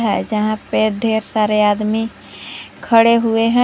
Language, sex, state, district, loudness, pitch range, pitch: Hindi, female, Jharkhand, Garhwa, -16 LUFS, 215-230 Hz, 220 Hz